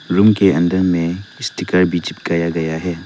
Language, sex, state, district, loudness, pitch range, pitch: Hindi, male, Arunachal Pradesh, Lower Dibang Valley, -17 LUFS, 85-90 Hz, 85 Hz